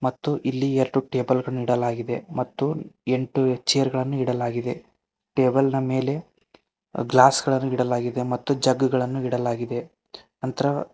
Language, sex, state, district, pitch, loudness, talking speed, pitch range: Kannada, male, Karnataka, Koppal, 130 Hz, -24 LUFS, 120 wpm, 125-135 Hz